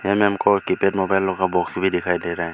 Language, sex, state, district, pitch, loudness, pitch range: Hindi, male, Arunachal Pradesh, Lower Dibang Valley, 95 Hz, -20 LUFS, 90-100 Hz